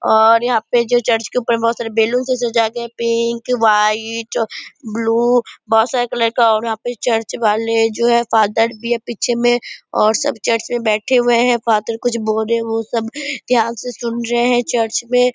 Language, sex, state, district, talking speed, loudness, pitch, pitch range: Hindi, female, Bihar, Purnia, 220 wpm, -16 LUFS, 235 Hz, 225-240 Hz